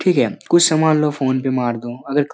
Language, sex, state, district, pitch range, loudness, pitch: Hindi, male, Bihar, Jamui, 130-155 Hz, -17 LUFS, 140 Hz